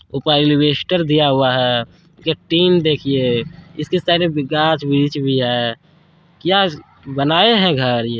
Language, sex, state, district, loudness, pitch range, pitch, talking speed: Hindi, male, Bihar, Saharsa, -16 LUFS, 135-170 Hz, 150 Hz, 155 wpm